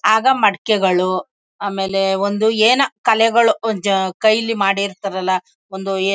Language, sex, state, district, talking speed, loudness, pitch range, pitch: Kannada, female, Karnataka, Mysore, 100 wpm, -17 LUFS, 195-225 Hz, 200 Hz